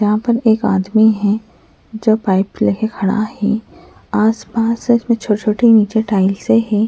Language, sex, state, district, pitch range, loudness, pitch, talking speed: Hindi, female, Uttarakhand, Tehri Garhwal, 210-225 Hz, -15 LUFS, 220 Hz, 150 wpm